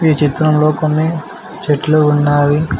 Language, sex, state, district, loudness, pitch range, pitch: Telugu, male, Telangana, Mahabubabad, -13 LUFS, 145-155 Hz, 150 Hz